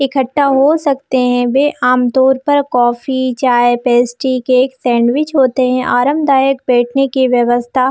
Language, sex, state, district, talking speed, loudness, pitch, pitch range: Hindi, female, Chhattisgarh, Bilaspur, 135 wpm, -13 LUFS, 260 Hz, 245-275 Hz